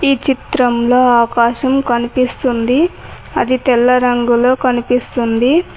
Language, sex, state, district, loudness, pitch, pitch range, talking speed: Telugu, female, Telangana, Mahabubabad, -14 LUFS, 250 Hz, 240-260 Hz, 85 wpm